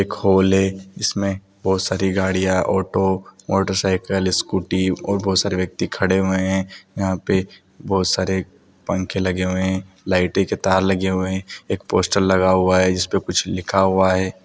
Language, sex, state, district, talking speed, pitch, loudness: Hindi, male, Andhra Pradesh, Anantapur, 170 wpm, 95 Hz, -20 LUFS